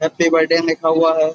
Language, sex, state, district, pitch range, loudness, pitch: Hindi, male, Uttar Pradesh, Budaun, 160-165 Hz, -15 LUFS, 160 Hz